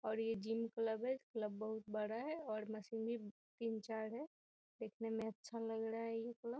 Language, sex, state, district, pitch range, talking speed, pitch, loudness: Hindi, female, Bihar, Gopalganj, 220-230 Hz, 200 wpm, 225 Hz, -45 LUFS